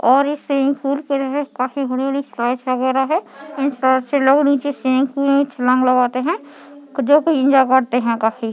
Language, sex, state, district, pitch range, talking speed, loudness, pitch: Hindi, female, Chhattisgarh, Bilaspur, 255-280 Hz, 210 wpm, -17 LUFS, 275 Hz